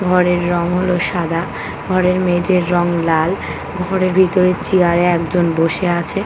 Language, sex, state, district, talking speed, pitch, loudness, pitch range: Bengali, female, West Bengal, Paschim Medinipur, 155 wpm, 175 Hz, -16 LUFS, 170-185 Hz